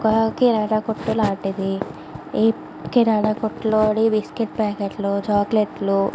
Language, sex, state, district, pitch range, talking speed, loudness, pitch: Telugu, female, Andhra Pradesh, Visakhapatnam, 200-220 Hz, 125 wpm, -21 LUFS, 215 Hz